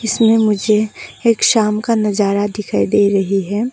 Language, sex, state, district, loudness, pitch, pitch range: Hindi, female, Arunachal Pradesh, Papum Pare, -15 LUFS, 210 Hz, 205-225 Hz